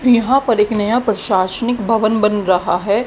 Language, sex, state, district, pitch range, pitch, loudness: Hindi, female, Haryana, Charkhi Dadri, 205-235 Hz, 215 Hz, -16 LUFS